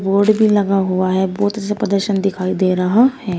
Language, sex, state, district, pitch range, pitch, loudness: Hindi, female, Uttar Pradesh, Shamli, 185-205 Hz, 195 Hz, -16 LUFS